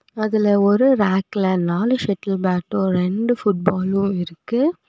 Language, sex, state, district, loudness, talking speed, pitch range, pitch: Tamil, female, Tamil Nadu, Nilgiris, -19 LUFS, 125 wpm, 185-215 Hz, 200 Hz